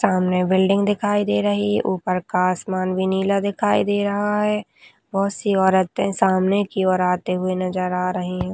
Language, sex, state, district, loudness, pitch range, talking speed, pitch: Hindi, female, Rajasthan, Nagaur, -20 LUFS, 180-200 Hz, 180 wpm, 185 Hz